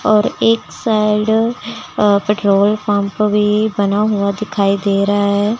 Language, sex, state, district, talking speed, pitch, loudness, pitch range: Hindi, female, Chandigarh, Chandigarh, 140 wpm, 210 Hz, -15 LUFS, 200-215 Hz